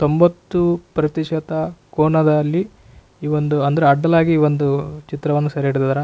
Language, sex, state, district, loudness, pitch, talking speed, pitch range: Kannada, male, Karnataka, Raichur, -18 LUFS, 150 Hz, 110 wpm, 145-165 Hz